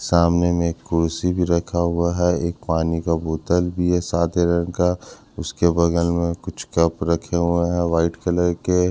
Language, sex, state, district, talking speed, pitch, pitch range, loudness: Hindi, male, Punjab, Kapurthala, 180 wpm, 85 Hz, 85-90 Hz, -21 LUFS